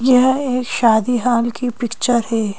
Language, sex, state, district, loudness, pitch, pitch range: Hindi, female, Madhya Pradesh, Bhopal, -17 LUFS, 240 Hz, 235-250 Hz